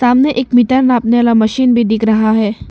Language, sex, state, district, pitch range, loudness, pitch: Hindi, female, Arunachal Pradesh, Papum Pare, 220-250 Hz, -12 LUFS, 240 Hz